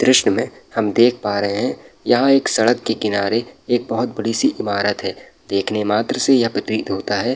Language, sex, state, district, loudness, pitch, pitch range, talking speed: Hindi, male, Bihar, Saharsa, -18 LUFS, 110 Hz, 105-120 Hz, 205 wpm